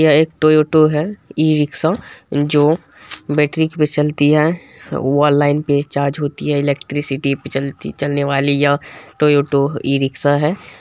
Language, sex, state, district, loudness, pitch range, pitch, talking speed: Hindi, male, Bihar, Supaul, -16 LUFS, 140-155 Hz, 145 Hz, 145 wpm